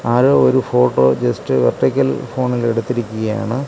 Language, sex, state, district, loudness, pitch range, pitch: Malayalam, male, Kerala, Kasaragod, -16 LUFS, 110-125 Hz, 120 Hz